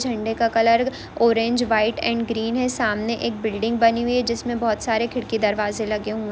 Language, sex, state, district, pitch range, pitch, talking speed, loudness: Hindi, female, Bihar, East Champaran, 220-235 Hz, 230 Hz, 200 wpm, -21 LUFS